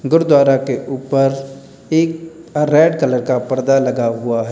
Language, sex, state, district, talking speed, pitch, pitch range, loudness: Hindi, male, Uttar Pradesh, Lalitpur, 145 wpm, 135 Hz, 130-155 Hz, -15 LUFS